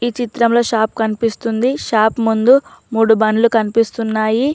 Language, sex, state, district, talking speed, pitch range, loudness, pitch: Telugu, female, Telangana, Mahabubabad, 130 wpm, 220-240 Hz, -15 LUFS, 230 Hz